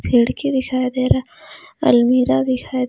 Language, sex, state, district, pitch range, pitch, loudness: Hindi, female, Jharkhand, Ranchi, 240-260 Hz, 255 Hz, -17 LUFS